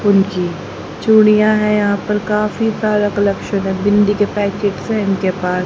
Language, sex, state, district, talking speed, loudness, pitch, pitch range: Hindi, female, Haryana, Rohtak, 160 wpm, -15 LUFS, 205 Hz, 195-210 Hz